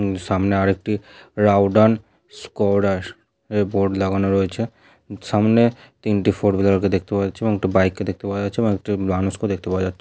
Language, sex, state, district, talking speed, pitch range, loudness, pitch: Bengali, male, West Bengal, Jhargram, 185 wpm, 95-110 Hz, -20 LUFS, 100 Hz